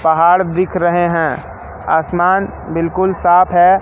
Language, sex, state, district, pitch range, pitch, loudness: Hindi, male, Madhya Pradesh, Katni, 165-185 Hz, 175 Hz, -14 LUFS